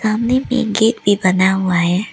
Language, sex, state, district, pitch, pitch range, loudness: Hindi, female, Arunachal Pradesh, Lower Dibang Valley, 215 Hz, 185-225 Hz, -15 LUFS